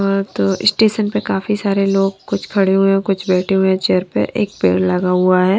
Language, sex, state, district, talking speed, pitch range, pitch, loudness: Hindi, female, Punjab, Kapurthala, 205 wpm, 185-195 Hz, 195 Hz, -16 LUFS